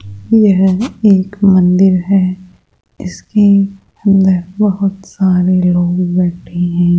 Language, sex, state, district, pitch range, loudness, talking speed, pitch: Hindi, female, Rajasthan, Jaipur, 180-195 Hz, -12 LUFS, 95 wpm, 190 Hz